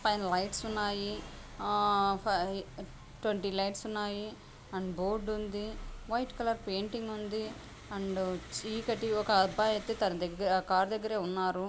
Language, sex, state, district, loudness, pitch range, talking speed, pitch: Telugu, female, Andhra Pradesh, Anantapur, -33 LUFS, 190-215 Hz, 125 wpm, 205 Hz